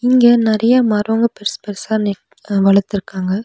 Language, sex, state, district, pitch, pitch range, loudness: Tamil, female, Tamil Nadu, Nilgiris, 210 Hz, 200-230 Hz, -15 LUFS